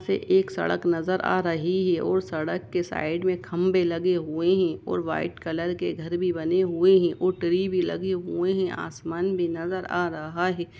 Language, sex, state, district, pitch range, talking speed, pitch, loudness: Hindi, male, Jharkhand, Sahebganj, 170-185 Hz, 195 wpm, 175 Hz, -25 LUFS